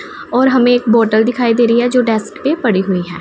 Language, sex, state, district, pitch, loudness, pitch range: Hindi, female, Punjab, Pathankot, 240 Hz, -13 LUFS, 220-250 Hz